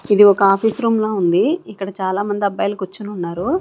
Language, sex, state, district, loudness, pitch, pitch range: Telugu, female, Andhra Pradesh, Sri Satya Sai, -17 LUFS, 200 Hz, 190-215 Hz